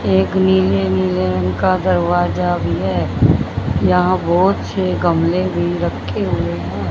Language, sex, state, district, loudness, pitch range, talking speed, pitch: Hindi, female, Haryana, Jhajjar, -16 LUFS, 90-110 Hz, 140 wpm, 95 Hz